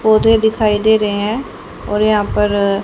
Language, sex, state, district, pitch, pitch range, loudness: Hindi, female, Haryana, Rohtak, 215 Hz, 205-220 Hz, -14 LUFS